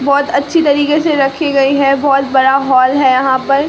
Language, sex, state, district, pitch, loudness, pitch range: Hindi, female, Bihar, Katihar, 275 Hz, -11 LUFS, 270-285 Hz